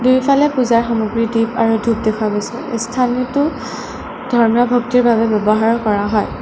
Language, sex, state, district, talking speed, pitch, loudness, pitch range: Assamese, female, Assam, Sonitpur, 140 wpm, 230 Hz, -16 LUFS, 220-250 Hz